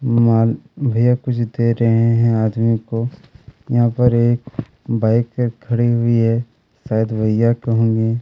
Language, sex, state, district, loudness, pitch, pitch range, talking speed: Hindi, male, Chhattisgarh, Kabirdham, -17 LUFS, 115 Hz, 115-120 Hz, 140 wpm